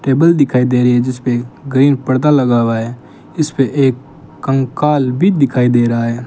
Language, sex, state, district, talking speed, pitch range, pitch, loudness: Hindi, male, Rajasthan, Bikaner, 180 wpm, 125-145 Hz, 130 Hz, -13 LUFS